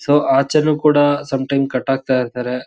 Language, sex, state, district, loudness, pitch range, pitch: Kannada, male, Karnataka, Shimoga, -16 LUFS, 130-145 Hz, 135 Hz